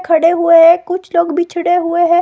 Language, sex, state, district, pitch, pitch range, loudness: Hindi, female, Himachal Pradesh, Shimla, 345 Hz, 335-350 Hz, -12 LUFS